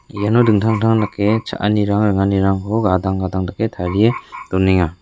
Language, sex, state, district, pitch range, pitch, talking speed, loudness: Garo, male, Meghalaya, West Garo Hills, 95-110 Hz, 100 Hz, 130 wpm, -17 LUFS